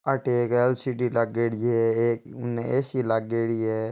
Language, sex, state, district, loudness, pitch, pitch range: Marwari, male, Rajasthan, Churu, -25 LUFS, 115 Hz, 115-125 Hz